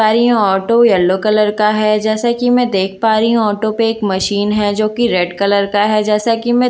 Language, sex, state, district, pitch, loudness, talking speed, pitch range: Hindi, female, Bihar, Katihar, 215 Hz, -14 LUFS, 260 wpm, 205-230 Hz